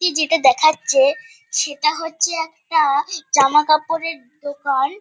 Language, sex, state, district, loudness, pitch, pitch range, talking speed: Bengali, female, West Bengal, Kolkata, -17 LUFS, 310 Hz, 285-330 Hz, 95 wpm